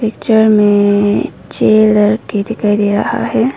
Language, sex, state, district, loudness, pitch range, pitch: Hindi, female, Arunachal Pradesh, Lower Dibang Valley, -12 LUFS, 205-220 Hz, 210 Hz